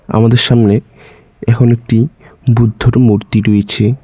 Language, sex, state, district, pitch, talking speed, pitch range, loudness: Bengali, male, West Bengal, Cooch Behar, 115 Hz, 105 wpm, 110-120 Hz, -11 LUFS